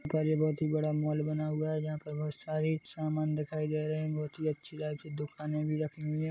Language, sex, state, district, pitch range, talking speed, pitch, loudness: Hindi, male, Chhattisgarh, Bilaspur, 150-155 Hz, 245 wpm, 155 Hz, -34 LUFS